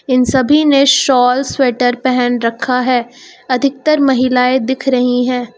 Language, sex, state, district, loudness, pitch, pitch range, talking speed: Hindi, female, Uttar Pradesh, Lucknow, -13 LUFS, 255 Hz, 250-270 Hz, 140 wpm